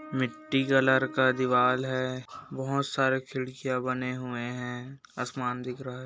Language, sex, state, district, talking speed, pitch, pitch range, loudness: Hindi, male, Bihar, Jamui, 140 wpm, 130 Hz, 125-130 Hz, -28 LUFS